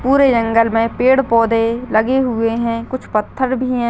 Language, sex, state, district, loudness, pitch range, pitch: Hindi, female, Maharashtra, Aurangabad, -16 LUFS, 230-260 Hz, 235 Hz